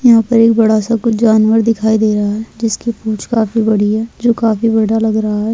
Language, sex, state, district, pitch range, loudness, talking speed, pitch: Hindi, female, Rajasthan, Churu, 220-230 Hz, -13 LUFS, 240 wpm, 225 Hz